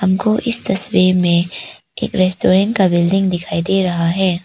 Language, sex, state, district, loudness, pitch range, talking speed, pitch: Hindi, female, Arunachal Pradesh, Papum Pare, -16 LUFS, 175-195 Hz, 160 wpm, 185 Hz